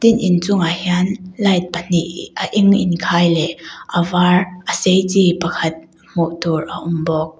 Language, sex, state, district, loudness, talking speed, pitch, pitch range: Mizo, female, Mizoram, Aizawl, -17 LUFS, 160 wpm, 175 Hz, 165-185 Hz